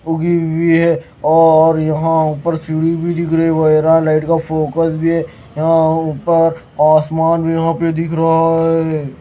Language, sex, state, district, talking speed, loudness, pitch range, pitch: Hindi, male, Maharashtra, Mumbai Suburban, 155 wpm, -14 LUFS, 160-165 Hz, 165 Hz